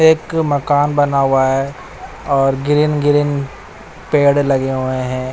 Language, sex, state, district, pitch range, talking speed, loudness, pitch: Hindi, male, Odisha, Nuapada, 135-145 Hz, 135 wpm, -15 LUFS, 140 Hz